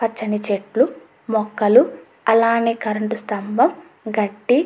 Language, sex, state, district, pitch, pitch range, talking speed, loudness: Telugu, female, Andhra Pradesh, Anantapur, 220 Hz, 210-230 Hz, 105 wpm, -19 LUFS